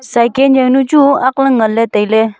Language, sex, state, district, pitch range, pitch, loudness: Wancho, female, Arunachal Pradesh, Longding, 225-270 Hz, 255 Hz, -11 LUFS